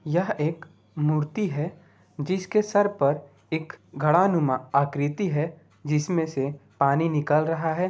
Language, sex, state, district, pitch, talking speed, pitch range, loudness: Hindi, male, Bihar, Gopalganj, 155 Hz, 130 wpm, 145-175 Hz, -25 LUFS